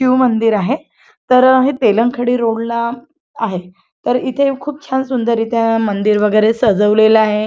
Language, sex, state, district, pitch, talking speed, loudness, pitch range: Marathi, female, Maharashtra, Chandrapur, 235 Hz, 145 wpm, -14 LUFS, 215-255 Hz